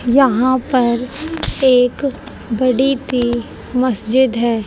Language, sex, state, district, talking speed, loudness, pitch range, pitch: Hindi, female, Haryana, Jhajjar, 90 wpm, -16 LUFS, 240-265 Hz, 255 Hz